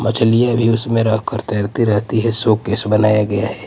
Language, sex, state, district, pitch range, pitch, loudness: Hindi, male, Punjab, Pathankot, 105-115 Hz, 110 Hz, -16 LUFS